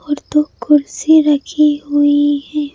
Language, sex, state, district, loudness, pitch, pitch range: Hindi, female, Madhya Pradesh, Bhopal, -14 LUFS, 295 Hz, 290-300 Hz